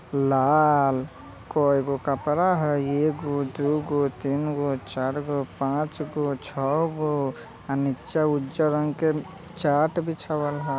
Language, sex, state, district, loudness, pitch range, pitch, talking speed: Bajjika, male, Bihar, Vaishali, -25 LUFS, 140-155 Hz, 145 Hz, 100 wpm